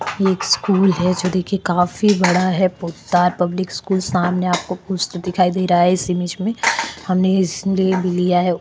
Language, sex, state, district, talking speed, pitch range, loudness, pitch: Hindi, female, Maharashtra, Chandrapur, 175 wpm, 180-190 Hz, -18 LUFS, 185 Hz